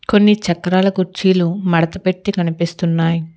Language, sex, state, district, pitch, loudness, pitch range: Telugu, female, Telangana, Hyderabad, 180 Hz, -16 LUFS, 170-190 Hz